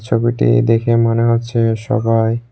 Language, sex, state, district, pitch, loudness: Bengali, male, Tripura, West Tripura, 115 Hz, -15 LUFS